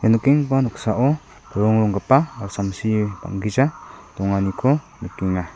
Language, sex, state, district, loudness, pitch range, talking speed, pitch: Garo, male, Meghalaya, South Garo Hills, -21 LUFS, 100-135 Hz, 75 wpm, 110 Hz